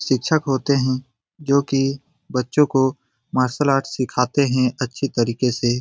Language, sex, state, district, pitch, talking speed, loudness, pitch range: Hindi, male, Bihar, Lakhisarai, 130 Hz, 145 wpm, -20 LUFS, 125-140 Hz